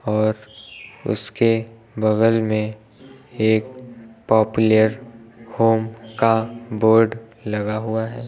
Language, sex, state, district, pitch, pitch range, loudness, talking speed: Hindi, male, Uttar Pradesh, Lucknow, 110 Hz, 110-115 Hz, -20 LUFS, 85 wpm